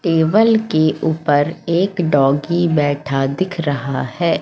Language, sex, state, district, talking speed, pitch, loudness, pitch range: Hindi, female, Madhya Pradesh, Katni, 120 wpm, 160 Hz, -17 LUFS, 145-175 Hz